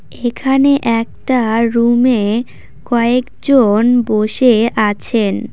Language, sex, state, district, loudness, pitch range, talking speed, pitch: Bengali, female, West Bengal, Cooch Behar, -13 LUFS, 225-250 Hz, 65 wpm, 235 Hz